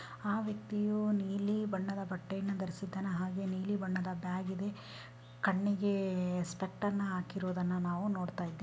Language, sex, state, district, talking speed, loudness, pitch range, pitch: Kannada, female, Karnataka, Dharwad, 120 wpm, -36 LUFS, 180-200 Hz, 190 Hz